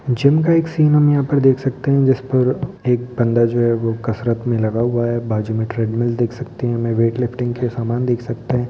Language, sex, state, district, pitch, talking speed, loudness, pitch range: Hindi, male, Bihar, Muzaffarpur, 120 Hz, 235 wpm, -18 LUFS, 115-130 Hz